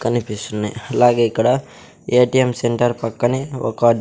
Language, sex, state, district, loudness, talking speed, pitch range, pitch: Telugu, male, Andhra Pradesh, Sri Satya Sai, -18 LUFS, 120 wpm, 115-125 Hz, 120 Hz